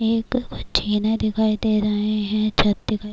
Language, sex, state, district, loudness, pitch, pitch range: Urdu, female, Bihar, Kishanganj, -21 LUFS, 215 Hz, 210-220 Hz